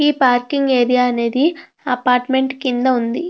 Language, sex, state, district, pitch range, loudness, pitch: Telugu, female, Andhra Pradesh, Krishna, 250-280 Hz, -16 LUFS, 260 Hz